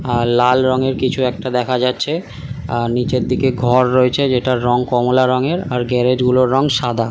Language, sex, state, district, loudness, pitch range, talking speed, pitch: Bengali, male, West Bengal, Kolkata, -16 LUFS, 125-130 Hz, 175 wpm, 125 Hz